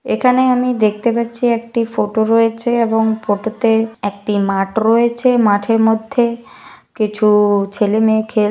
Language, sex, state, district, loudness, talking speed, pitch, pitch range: Bengali, female, West Bengal, Malda, -15 LUFS, 135 wpm, 225 Hz, 210-235 Hz